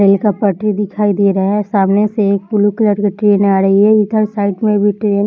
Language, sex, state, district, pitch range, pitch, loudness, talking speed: Hindi, female, Bihar, Samastipur, 200-210 Hz, 205 Hz, -13 LUFS, 260 wpm